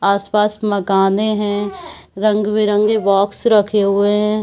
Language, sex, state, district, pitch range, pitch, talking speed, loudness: Hindi, female, Chhattisgarh, Bilaspur, 200-215 Hz, 210 Hz, 120 wpm, -16 LUFS